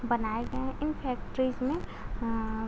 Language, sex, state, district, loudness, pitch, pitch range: Hindi, female, Uttar Pradesh, Gorakhpur, -33 LUFS, 245 Hz, 225-265 Hz